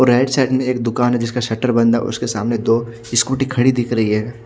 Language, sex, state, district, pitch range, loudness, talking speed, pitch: Hindi, male, Chhattisgarh, Raipur, 115-125 Hz, -17 LUFS, 255 wpm, 120 Hz